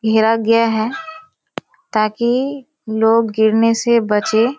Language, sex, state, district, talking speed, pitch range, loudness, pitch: Hindi, female, Bihar, Kishanganj, 105 wpm, 220-250 Hz, -16 LUFS, 230 Hz